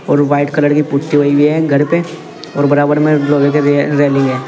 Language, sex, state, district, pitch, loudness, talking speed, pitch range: Hindi, male, Uttar Pradesh, Saharanpur, 145 Hz, -12 LUFS, 215 wpm, 145-150 Hz